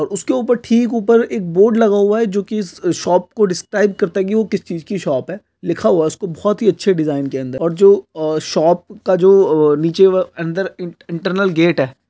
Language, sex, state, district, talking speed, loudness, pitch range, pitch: Hindi, male, Chhattisgarh, Korba, 225 wpm, -16 LUFS, 170-205 Hz, 190 Hz